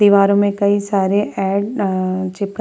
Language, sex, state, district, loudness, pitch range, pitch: Hindi, female, Uttar Pradesh, Muzaffarnagar, -17 LUFS, 195-205 Hz, 200 Hz